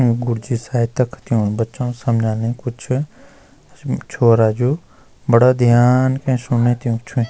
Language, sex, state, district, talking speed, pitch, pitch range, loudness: Garhwali, male, Uttarakhand, Uttarkashi, 130 wpm, 120 Hz, 115-125 Hz, -17 LUFS